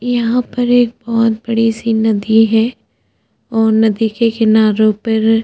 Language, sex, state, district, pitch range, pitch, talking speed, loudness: Hindi, female, Chhattisgarh, Bastar, 220-230 Hz, 225 Hz, 145 wpm, -14 LUFS